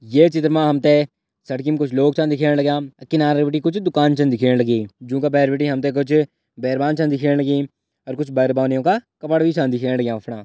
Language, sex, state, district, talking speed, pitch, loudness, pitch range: Garhwali, male, Uttarakhand, Tehri Garhwal, 210 wpm, 145 Hz, -18 LUFS, 130-150 Hz